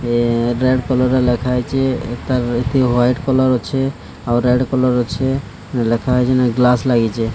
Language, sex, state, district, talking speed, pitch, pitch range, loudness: Odia, male, Odisha, Sambalpur, 165 wpm, 125 Hz, 120-130 Hz, -16 LUFS